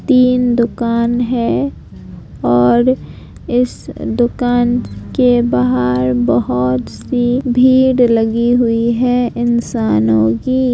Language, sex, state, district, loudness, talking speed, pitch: Hindi, female, Uttar Pradesh, Jalaun, -14 LUFS, 90 wpm, 235 Hz